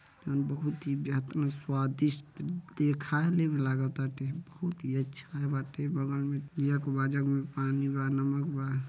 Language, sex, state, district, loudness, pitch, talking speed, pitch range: Bhojpuri, male, Uttar Pradesh, Deoria, -32 LUFS, 140 Hz, 115 wpm, 135-150 Hz